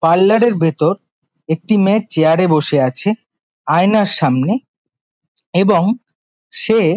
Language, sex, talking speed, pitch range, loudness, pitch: Bengali, male, 120 wpm, 160-210 Hz, -14 LUFS, 175 Hz